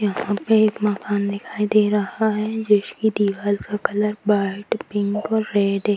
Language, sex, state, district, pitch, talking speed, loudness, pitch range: Hindi, female, Bihar, Jahanabad, 210 Hz, 170 wpm, -21 LUFS, 205-215 Hz